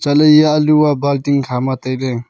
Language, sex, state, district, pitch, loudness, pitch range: Wancho, male, Arunachal Pradesh, Longding, 140 Hz, -14 LUFS, 130-150 Hz